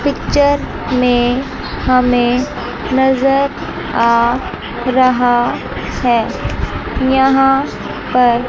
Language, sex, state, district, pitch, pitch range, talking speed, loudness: Hindi, female, Chandigarh, Chandigarh, 255 Hz, 245-270 Hz, 65 wpm, -15 LUFS